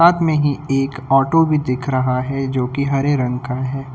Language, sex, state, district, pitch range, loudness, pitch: Hindi, male, Uttar Pradesh, Lucknow, 130-145 Hz, -18 LUFS, 135 Hz